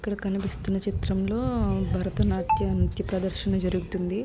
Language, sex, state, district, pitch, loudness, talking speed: Telugu, female, Andhra Pradesh, Krishna, 190 Hz, -27 LUFS, 100 wpm